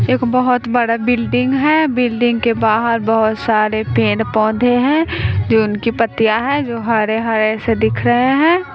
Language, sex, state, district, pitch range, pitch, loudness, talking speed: Hindi, female, Bihar, West Champaran, 220-245 Hz, 230 Hz, -15 LUFS, 165 wpm